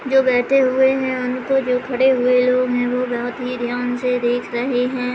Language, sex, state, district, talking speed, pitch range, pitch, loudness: Hindi, female, Bihar, Begusarai, 210 wpm, 245-260 Hz, 250 Hz, -18 LUFS